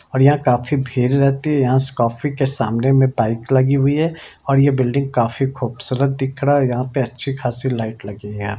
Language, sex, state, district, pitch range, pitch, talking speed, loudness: Hindi, male, Bihar, Jamui, 120-140 Hz, 130 Hz, 215 wpm, -18 LUFS